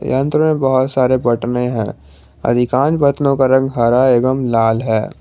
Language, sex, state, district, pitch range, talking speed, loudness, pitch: Hindi, male, Jharkhand, Garhwa, 115-135 Hz, 160 wpm, -15 LUFS, 125 Hz